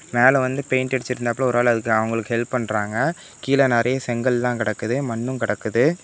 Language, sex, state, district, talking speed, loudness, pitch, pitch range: Tamil, male, Tamil Nadu, Namakkal, 160 wpm, -21 LUFS, 120 Hz, 115-130 Hz